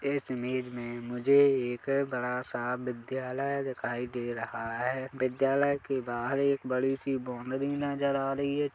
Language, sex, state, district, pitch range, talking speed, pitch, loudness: Hindi, male, Chhattisgarh, Kabirdham, 125-140 Hz, 160 wpm, 130 Hz, -31 LUFS